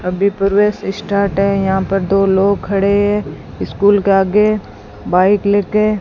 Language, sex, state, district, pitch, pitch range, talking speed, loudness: Hindi, female, Rajasthan, Bikaner, 195 Hz, 195-205 Hz, 150 wpm, -14 LUFS